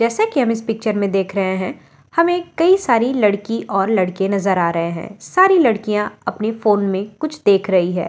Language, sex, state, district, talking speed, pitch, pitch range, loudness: Hindi, female, Delhi, New Delhi, 210 wpm, 210 Hz, 195-235 Hz, -17 LUFS